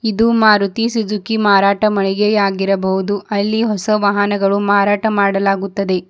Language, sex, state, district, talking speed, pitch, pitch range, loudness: Kannada, female, Karnataka, Bidar, 100 wpm, 205 Hz, 195-215 Hz, -15 LUFS